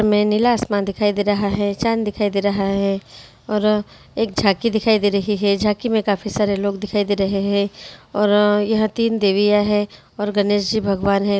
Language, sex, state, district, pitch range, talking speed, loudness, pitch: Hindi, female, Andhra Pradesh, Krishna, 200-210 Hz, 200 wpm, -19 LUFS, 205 Hz